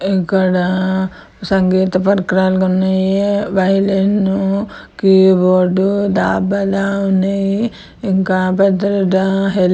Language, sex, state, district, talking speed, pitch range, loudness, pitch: Telugu, female, Telangana, Karimnagar, 60 wpm, 190-195 Hz, -14 LUFS, 190 Hz